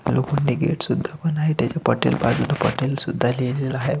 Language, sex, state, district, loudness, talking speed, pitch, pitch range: Marathi, male, Maharashtra, Solapur, -21 LUFS, 180 wpm, 145 Hz, 130-160 Hz